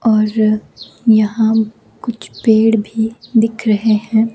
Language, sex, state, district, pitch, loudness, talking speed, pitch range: Hindi, female, Himachal Pradesh, Shimla, 220 Hz, -15 LUFS, 110 wpm, 215-225 Hz